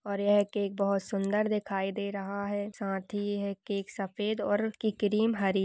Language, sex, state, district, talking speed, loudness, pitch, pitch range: Hindi, female, Uttar Pradesh, Budaun, 200 wpm, -31 LUFS, 205 Hz, 200-205 Hz